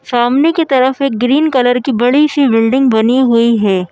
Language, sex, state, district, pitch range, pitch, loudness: Hindi, female, Madhya Pradesh, Bhopal, 235-275 Hz, 255 Hz, -11 LUFS